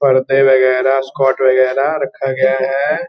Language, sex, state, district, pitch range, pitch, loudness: Hindi, male, Bihar, Gopalganj, 130-135 Hz, 135 Hz, -14 LUFS